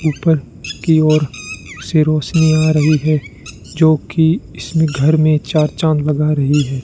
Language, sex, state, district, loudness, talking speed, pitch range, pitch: Hindi, male, Rajasthan, Bikaner, -15 LUFS, 150 wpm, 145-155 Hz, 155 Hz